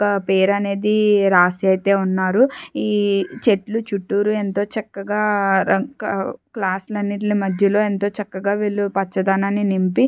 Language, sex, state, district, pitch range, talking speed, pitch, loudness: Telugu, female, Andhra Pradesh, Chittoor, 195-210 Hz, 105 wpm, 200 Hz, -19 LUFS